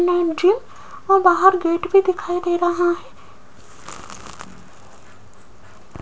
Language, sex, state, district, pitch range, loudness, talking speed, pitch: Hindi, female, Rajasthan, Jaipur, 350-385 Hz, -18 LUFS, 100 wpm, 360 Hz